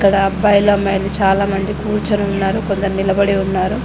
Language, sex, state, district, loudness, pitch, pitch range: Telugu, female, Telangana, Mahabubabad, -16 LUFS, 195 Hz, 195-205 Hz